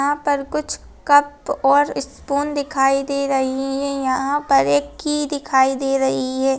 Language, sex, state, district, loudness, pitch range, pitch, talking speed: Hindi, female, Chhattisgarh, Kabirdham, -19 LUFS, 270-285 Hz, 275 Hz, 175 wpm